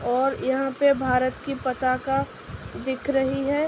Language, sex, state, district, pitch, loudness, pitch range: Hindi, female, Uttar Pradesh, Hamirpur, 265 Hz, -24 LUFS, 255-275 Hz